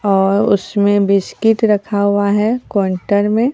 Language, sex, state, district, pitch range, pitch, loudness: Hindi, female, Bihar, Katihar, 200-215 Hz, 205 Hz, -15 LUFS